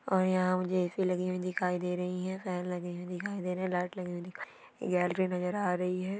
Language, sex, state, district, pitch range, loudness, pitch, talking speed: Hindi, female, West Bengal, Purulia, 180-185 Hz, -33 LUFS, 180 Hz, 250 wpm